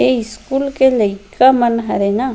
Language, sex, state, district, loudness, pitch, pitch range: Chhattisgarhi, female, Chhattisgarh, Rajnandgaon, -15 LUFS, 240 Hz, 215-265 Hz